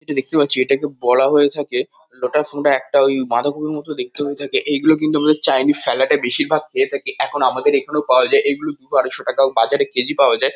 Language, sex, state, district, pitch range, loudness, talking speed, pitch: Bengali, male, West Bengal, Kolkata, 135-160 Hz, -17 LUFS, 210 wpm, 145 Hz